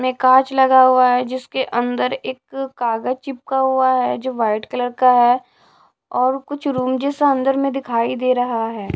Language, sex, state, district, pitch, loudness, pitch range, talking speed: Hindi, female, Odisha, Sambalpur, 255 Hz, -18 LUFS, 245-265 Hz, 180 wpm